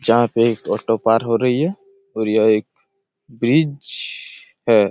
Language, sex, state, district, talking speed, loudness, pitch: Hindi, male, Chhattisgarh, Raigarh, 160 wpm, -18 LUFS, 125 Hz